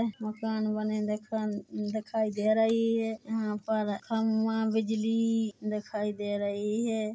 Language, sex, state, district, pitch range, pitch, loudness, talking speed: Hindi, female, Chhattisgarh, Korba, 210-225 Hz, 220 Hz, -30 LUFS, 120 wpm